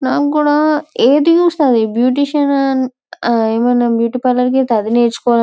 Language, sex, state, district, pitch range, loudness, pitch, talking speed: Telugu, female, Telangana, Karimnagar, 235-290 Hz, -13 LUFS, 255 Hz, 135 wpm